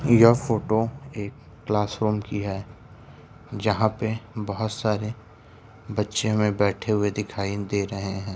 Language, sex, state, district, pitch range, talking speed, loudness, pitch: Hindi, male, Uttar Pradesh, Ghazipur, 105-110 Hz, 135 wpm, -25 LUFS, 110 Hz